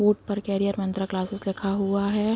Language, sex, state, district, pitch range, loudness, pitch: Hindi, female, Bihar, Vaishali, 195-205 Hz, -26 LUFS, 200 Hz